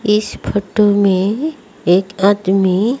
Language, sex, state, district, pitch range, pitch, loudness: Hindi, female, Odisha, Malkangiri, 190-210 Hz, 200 Hz, -15 LUFS